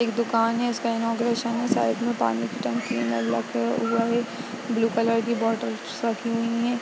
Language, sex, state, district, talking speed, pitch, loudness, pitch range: Hindi, female, Uttar Pradesh, Jyotiba Phule Nagar, 210 wpm, 230 Hz, -25 LUFS, 225-235 Hz